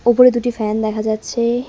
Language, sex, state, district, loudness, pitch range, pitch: Bengali, female, West Bengal, Cooch Behar, -17 LUFS, 215-240 Hz, 235 Hz